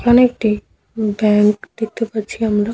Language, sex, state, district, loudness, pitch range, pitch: Bengali, female, West Bengal, Malda, -17 LUFS, 210-230 Hz, 220 Hz